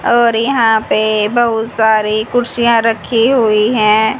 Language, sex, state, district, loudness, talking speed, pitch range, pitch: Hindi, female, Haryana, Jhajjar, -12 LUFS, 130 wpm, 215-235 Hz, 225 Hz